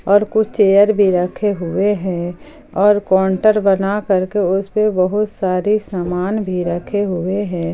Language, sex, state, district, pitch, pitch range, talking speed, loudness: Hindi, female, Jharkhand, Palamu, 195 Hz, 185-205 Hz, 155 wpm, -16 LUFS